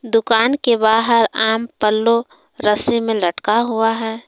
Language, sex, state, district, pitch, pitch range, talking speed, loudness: Hindi, female, Jharkhand, Palamu, 225 Hz, 220-230 Hz, 140 wpm, -16 LUFS